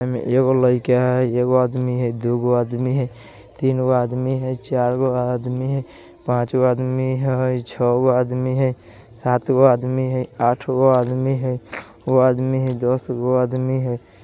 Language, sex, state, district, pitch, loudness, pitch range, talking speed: Bajjika, male, Bihar, Vaishali, 125 Hz, -20 LUFS, 125-130 Hz, 145 wpm